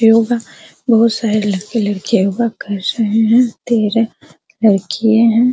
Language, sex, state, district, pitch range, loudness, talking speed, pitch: Hindi, female, Bihar, Araria, 210-230 Hz, -15 LUFS, 120 wpm, 225 Hz